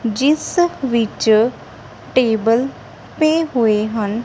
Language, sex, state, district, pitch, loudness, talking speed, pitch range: Punjabi, female, Punjab, Kapurthala, 235 Hz, -17 LUFS, 85 wpm, 220-280 Hz